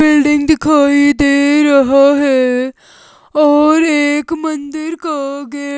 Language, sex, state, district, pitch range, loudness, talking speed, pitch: Hindi, male, Himachal Pradesh, Shimla, 280-305 Hz, -12 LUFS, 105 wpm, 290 Hz